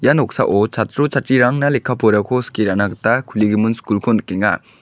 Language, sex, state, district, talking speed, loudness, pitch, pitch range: Garo, male, Meghalaya, West Garo Hills, 150 wpm, -17 LUFS, 110 Hz, 105-125 Hz